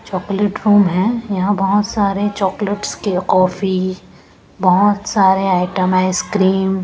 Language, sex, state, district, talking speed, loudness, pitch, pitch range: Hindi, female, Punjab, Pathankot, 125 wpm, -16 LUFS, 195 Hz, 185-205 Hz